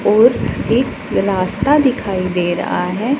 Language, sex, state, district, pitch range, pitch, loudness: Hindi, female, Punjab, Pathankot, 185-255 Hz, 200 Hz, -16 LUFS